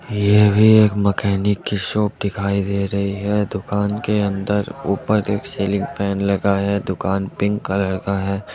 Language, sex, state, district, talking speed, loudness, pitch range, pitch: Hindi, male, Bihar, Muzaffarpur, 170 wpm, -19 LUFS, 100-105 Hz, 100 Hz